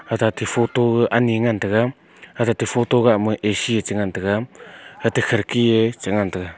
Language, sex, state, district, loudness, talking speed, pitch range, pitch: Wancho, male, Arunachal Pradesh, Longding, -19 LUFS, 155 wpm, 105-120 Hz, 115 Hz